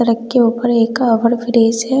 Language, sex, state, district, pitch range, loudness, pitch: Hindi, female, Bihar, West Champaran, 230-240 Hz, -14 LUFS, 235 Hz